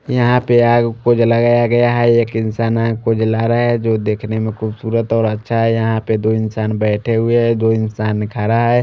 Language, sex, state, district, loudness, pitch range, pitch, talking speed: Hindi, male, Chandigarh, Chandigarh, -15 LUFS, 110-120 Hz, 115 Hz, 215 wpm